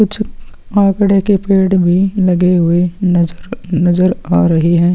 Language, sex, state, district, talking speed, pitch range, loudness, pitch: Hindi, male, Chhattisgarh, Sukma, 145 wpm, 175-195 Hz, -13 LUFS, 180 Hz